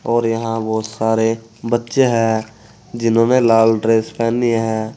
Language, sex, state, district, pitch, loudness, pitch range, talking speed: Hindi, male, Uttar Pradesh, Saharanpur, 115 Hz, -17 LUFS, 110-115 Hz, 135 wpm